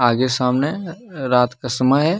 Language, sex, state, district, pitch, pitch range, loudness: Hindi, male, Jharkhand, Deoghar, 130 Hz, 125-160 Hz, -19 LUFS